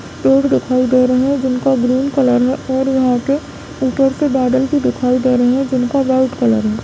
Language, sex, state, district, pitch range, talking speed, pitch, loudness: Hindi, female, Bihar, Darbhanga, 250-265 Hz, 210 wpm, 255 Hz, -15 LUFS